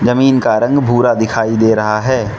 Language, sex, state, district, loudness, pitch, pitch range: Hindi, male, Manipur, Imphal West, -13 LUFS, 120 Hz, 110-130 Hz